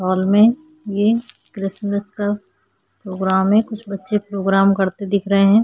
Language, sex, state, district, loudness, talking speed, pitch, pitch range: Hindi, female, Uttarakhand, Tehri Garhwal, -18 LUFS, 150 wpm, 200 Hz, 190-210 Hz